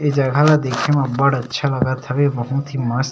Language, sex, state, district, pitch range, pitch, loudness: Chhattisgarhi, male, Chhattisgarh, Sarguja, 130-145 Hz, 135 Hz, -18 LUFS